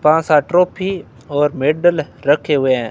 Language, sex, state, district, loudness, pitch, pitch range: Hindi, male, Rajasthan, Bikaner, -16 LUFS, 150 Hz, 140-170 Hz